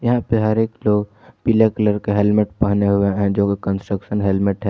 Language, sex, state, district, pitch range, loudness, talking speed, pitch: Hindi, male, Jharkhand, Ranchi, 100-110 Hz, -18 LUFS, 205 wpm, 105 Hz